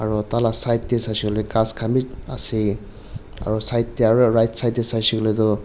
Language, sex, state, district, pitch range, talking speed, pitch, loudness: Nagamese, male, Nagaland, Dimapur, 110-115 Hz, 210 wpm, 110 Hz, -19 LUFS